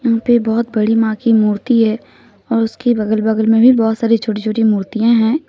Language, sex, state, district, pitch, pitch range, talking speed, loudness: Hindi, female, Jharkhand, Deoghar, 225 Hz, 220-235 Hz, 220 wpm, -14 LUFS